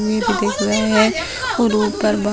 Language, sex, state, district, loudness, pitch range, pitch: Hindi, female, Bihar, Muzaffarpur, -17 LUFS, 210-225 Hz, 215 Hz